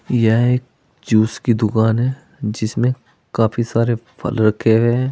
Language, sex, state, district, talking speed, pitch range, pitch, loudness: Hindi, male, Uttar Pradesh, Saharanpur, 150 wpm, 110-125 Hz, 115 Hz, -18 LUFS